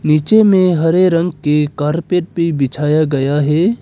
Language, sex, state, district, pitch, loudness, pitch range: Hindi, male, Arunachal Pradesh, Papum Pare, 155 Hz, -14 LUFS, 150-180 Hz